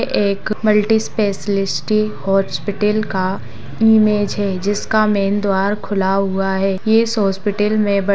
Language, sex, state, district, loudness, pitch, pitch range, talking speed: Hindi, female, Bihar, Sitamarhi, -17 LUFS, 205 Hz, 195-215 Hz, 120 wpm